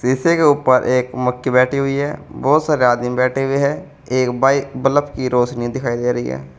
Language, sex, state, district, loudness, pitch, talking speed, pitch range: Hindi, male, Uttar Pradesh, Saharanpur, -17 LUFS, 130 Hz, 210 wpm, 125-140 Hz